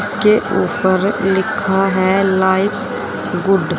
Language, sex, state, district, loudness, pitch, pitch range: Hindi, female, Haryana, Rohtak, -16 LUFS, 195 Hz, 190-205 Hz